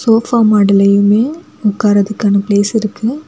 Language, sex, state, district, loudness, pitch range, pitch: Tamil, female, Tamil Nadu, Kanyakumari, -12 LUFS, 200-225 Hz, 210 Hz